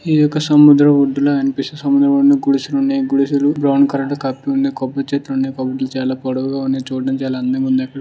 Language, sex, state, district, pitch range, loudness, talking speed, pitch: Telugu, male, Andhra Pradesh, Srikakulam, 135-140 Hz, -16 LUFS, 170 wpm, 140 Hz